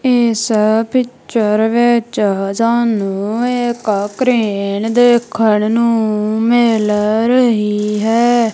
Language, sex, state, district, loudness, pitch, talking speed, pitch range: Punjabi, female, Punjab, Kapurthala, -14 LUFS, 225 Hz, 75 wpm, 210-240 Hz